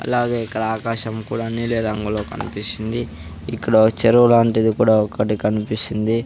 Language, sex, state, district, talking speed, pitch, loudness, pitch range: Telugu, male, Andhra Pradesh, Sri Satya Sai, 115 wpm, 110 Hz, -19 LUFS, 105-115 Hz